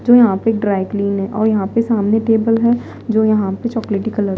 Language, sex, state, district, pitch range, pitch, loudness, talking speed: Hindi, female, Bihar, Kaimur, 200-230 Hz, 220 Hz, -16 LUFS, 260 wpm